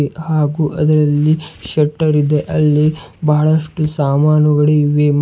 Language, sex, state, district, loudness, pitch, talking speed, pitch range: Kannada, male, Karnataka, Bidar, -14 LUFS, 150 Hz, 90 wpm, 150-155 Hz